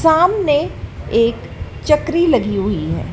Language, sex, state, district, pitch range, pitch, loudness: Hindi, female, Madhya Pradesh, Dhar, 205-325 Hz, 290 Hz, -16 LUFS